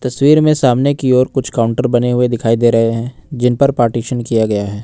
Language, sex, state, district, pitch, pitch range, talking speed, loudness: Hindi, male, Jharkhand, Ranchi, 125 Hz, 115-135 Hz, 235 wpm, -14 LUFS